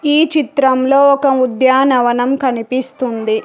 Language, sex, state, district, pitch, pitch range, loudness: Telugu, female, Telangana, Hyderabad, 260 Hz, 250-275 Hz, -13 LUFS